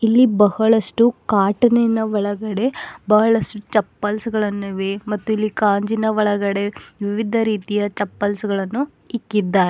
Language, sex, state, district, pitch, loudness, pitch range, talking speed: Kannada, female, Karnataka, Bidar, 210 Hz, -19 LUFS, 205-220 Hz, 105 wpm